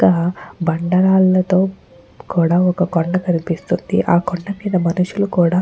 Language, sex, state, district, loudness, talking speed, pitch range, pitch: Telugu, female, Andhra Pradesh, Chittoor, -17 LUFS, 115 wpm, 170-185 Hz, 180 Hz